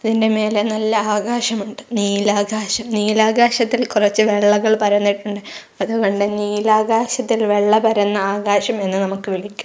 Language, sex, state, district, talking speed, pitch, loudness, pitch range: Malayalam, female, Kerala, Kozhikode, 110 wpm, 210 Hz, -17 LUFS, 205-225 Hz